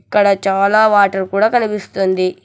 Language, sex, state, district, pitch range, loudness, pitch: Telugu, male, Telangana, Hyderabad, 190-210 Hz, -14 LUFS, 200 Hz